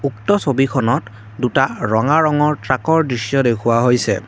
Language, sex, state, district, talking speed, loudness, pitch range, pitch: Assamese, male, Assam, Kamrup Metropolitan, 125 wpm, -16 LUFS, 115-140 Hz, 130 Hz